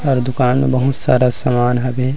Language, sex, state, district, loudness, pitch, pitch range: Chhattisgarhi, male, Chhattisgarh, Rajnandgaon, -15 LUFS, 125 Hz, 125-130 Hz